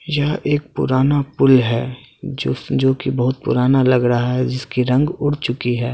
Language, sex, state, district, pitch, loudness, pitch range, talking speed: Hindi, male, Bihar, Purnia, 130 Hz, -18 LUFS, 125-140 Hz, 200 wpm